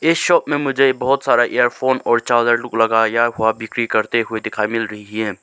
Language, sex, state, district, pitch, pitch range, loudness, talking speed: Hindi, male, Arunachal Pradesh, Lower Dibang Valley, 120 Hz, 110-130 Hz, -17 LUFS, 230 wpm